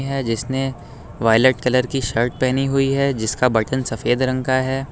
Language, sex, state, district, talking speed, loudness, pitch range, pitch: Hindi, male, Uttar Pradesh, Lucknow, 185 wpm, -19 LUFS, 120-135 Hz, 130 Hz